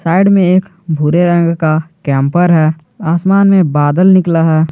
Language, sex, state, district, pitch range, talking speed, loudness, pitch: Hindi, male, Jharkhand, Garhwa, 155-185 Hz, 165 wpm, -11 LUFS, 170 Hz